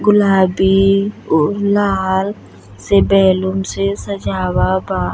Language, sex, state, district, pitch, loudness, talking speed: Bhojpuri, female, Uttar Pradesh, Deoria, 185 Hz, -15 LUFS, 95 wpm